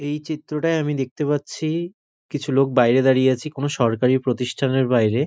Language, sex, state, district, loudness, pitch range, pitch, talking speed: Bengali, male, West Bengal, North 24 Parganas, -21 LUFS, 130-150 Hz, 140 Hz, 160 wpm